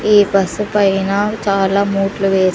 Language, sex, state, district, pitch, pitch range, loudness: Telugu, female, Andhra Pradesh, Sri Satya Sai, 200 Hz, 195-205 Hz, -15 LUFS